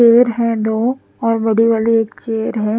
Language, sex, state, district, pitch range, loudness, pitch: Hindi, female, Punjab, Pathankot, 220-235 Hz, -16 LUFS, 225 Hz